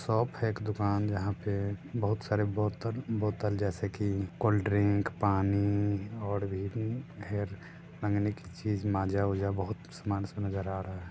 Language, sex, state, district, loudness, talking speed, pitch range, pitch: Hindi, male, Bihar, Sitamarhi, -32 LUFS, 165 wpm, 100-110 Hz, 100 Hz